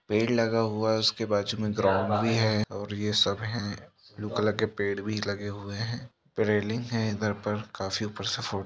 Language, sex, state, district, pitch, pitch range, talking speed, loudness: Hindi, female, Chhattisgarh, Raigarh, 105 Hz, 100-110 Hz, 195 wpm, -28 LUFS